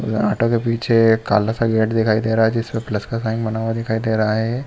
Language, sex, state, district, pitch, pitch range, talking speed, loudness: Hindi, male, Jharkhand, Sahebganj, 110 Hz, 110-115 Hz, 285 wpm, -19 LUFS